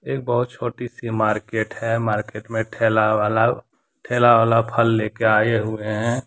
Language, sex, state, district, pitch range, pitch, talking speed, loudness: Hindi, male, Jharkhand, Deoghar, 110-120 Hz, 115 Hz, 170 wpm, -20 LUFS